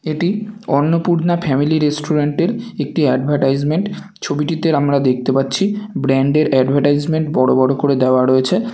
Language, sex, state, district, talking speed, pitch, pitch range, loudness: Bengali, male, West Bengal, North 24 Parganas, 150 wpm, 150 Hz, 135-170 Hz, -16 LUFS